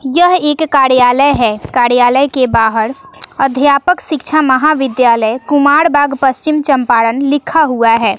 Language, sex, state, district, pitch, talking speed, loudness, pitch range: Hindi, female, Bihar, West Champaran, 275 Hz, 125 wpm, -11 LUFS, 245-300 Hz